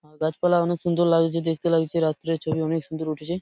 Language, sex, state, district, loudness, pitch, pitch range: Bengali, male, West Bengal, Purulia, -24 LUFS, 165 Hz, 160-170 Hz